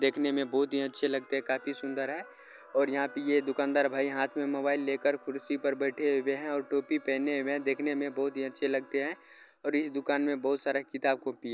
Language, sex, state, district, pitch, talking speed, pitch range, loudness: Hindi, male, Bihar, Jamui, 140 Hz, 240 wpm, 135-145 Hz, -31 LUFS